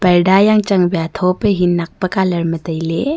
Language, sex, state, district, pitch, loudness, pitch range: Wancho, female, Arunachal Pradesh, Longding, 180 Hz, -15 LUFS, 170-190 Hz